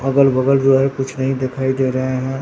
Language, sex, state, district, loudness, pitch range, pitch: Hindi, male, Bihar, Katihar, -17 LUFS, 130-135 Hz, 135 Hz